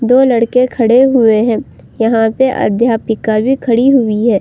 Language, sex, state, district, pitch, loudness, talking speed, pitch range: Hindi, female, Uttar Pradesh, Budaun, 235 Hz, -12 LUFS, 165 wpm, 225-255 Hz